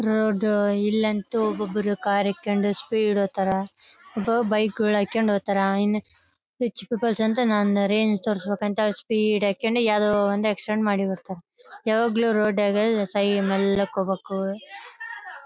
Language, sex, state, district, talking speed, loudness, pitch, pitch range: Kannada, female, Karnataka, Bellary, 130 wpm, -23 LUFS, 210 Hz, 200-220 Hz